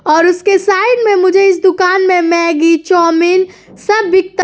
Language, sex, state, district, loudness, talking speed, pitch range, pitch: Hindi, female, Uttar Pradesh, Jyotiba Phule Nagar, -10 LUFS, 175 wpm, 340-390 Hz, 370 Hz